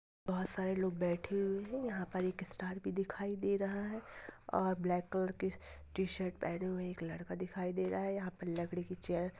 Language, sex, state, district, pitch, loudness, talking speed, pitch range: Hindi, female, Jharkhand, Sahebganj, 185 Hz, -39 LUFS, 225 wpm, 180-195 Hz